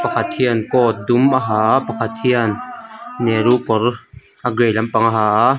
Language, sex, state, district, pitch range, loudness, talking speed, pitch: Mizo, male, Mizoram, Aizawl, 110-125 Hz, -16 LUFS, 180 wpm, 120 Hz